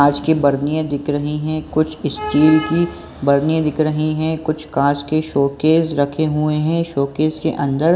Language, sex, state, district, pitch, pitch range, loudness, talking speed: Hindi, male, Chhattisgarh, Balrampur, 155 Hz, 145-155 Hz, -18 LUFS, 180 wpm